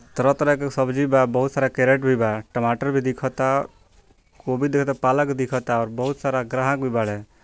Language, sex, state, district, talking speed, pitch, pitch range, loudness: Bhojpuri, male, Bihar, Gopalganj, 195 wpm, 130 Hz, 125-140 Hz, -22 LUFS